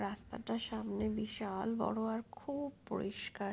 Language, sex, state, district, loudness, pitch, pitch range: Bengali, female, West Bengal, Purulia, -40 LUFS, 220 Hz, 205-230 Hz